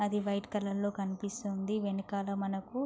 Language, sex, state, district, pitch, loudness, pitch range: Telugu, female, Andhra Pradesh, Anantapur, 200 Hz, -35 LUFS, 195-205 Hz